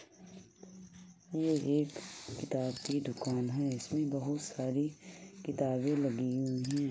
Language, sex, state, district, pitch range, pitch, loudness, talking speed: Hindi, male, Uttar Pradesh, Jalaun, 130-175 Hz, 145 Hz, -35 LUFS, 120 wpm